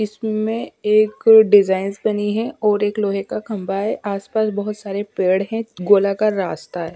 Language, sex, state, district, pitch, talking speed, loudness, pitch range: Hindi, female, Chhattisgarh, Raipur, 205 Hz, 165 wpm, -18 LUFS, 195-215 Hz